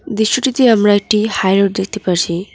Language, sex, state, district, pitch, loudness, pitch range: Bengali, female, West Bengal, Cooch Behar, 210 Hz, -14 LUFS, 195-220 Hz